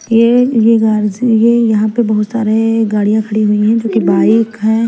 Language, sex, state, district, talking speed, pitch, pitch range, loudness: Hindi, female, Bihar, Patna, 185 wpm, 220 Hz, 215-230 Hz, -12 LUFS